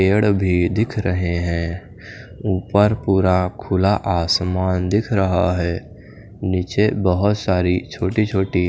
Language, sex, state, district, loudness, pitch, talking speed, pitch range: Hindi, male, Chandigarh, Chandigarh, -19 LUFS, 95 Hz, 125 wpm, 90-105 Hz